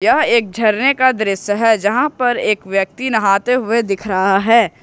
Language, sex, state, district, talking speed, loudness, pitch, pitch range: Hindi, male, Jharkhand, Ranchi, 185 wpm, -15 LUFS, 220 Hz, 195-250 Hz